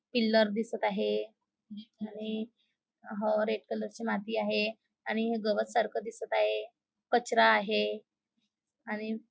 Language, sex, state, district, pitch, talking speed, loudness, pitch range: Marathi, female, Maharashtra, Nagpur, 215 Hz, 115 wpm, -31 LUFS, 210-225 Hz